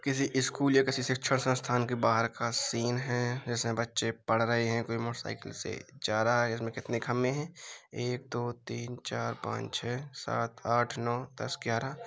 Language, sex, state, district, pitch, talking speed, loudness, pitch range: Hindi, male, Uttar Pradesh, Hamirpur, 120 Hz, 190 wpm, -32 LUFS, 115-130 Hz